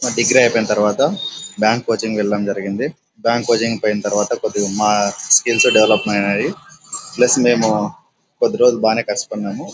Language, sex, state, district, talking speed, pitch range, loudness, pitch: Telugu, male, Andhra Pradesh, Anantapur, 155 wpm, 105-120 Hz, -16 LUFS, 110 Hz